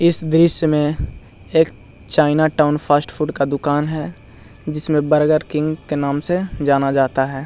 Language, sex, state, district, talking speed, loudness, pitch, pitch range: Hindi, male, Bihar, Jahanabad, 160 wpm, -17 LUFS, 150 Hz, 140-155 Hz